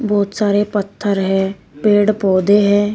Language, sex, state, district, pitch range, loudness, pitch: Hindi, female, Uttar Pradesh, Shamli, 195-205 Hz, -15 LUFS, 205 Hz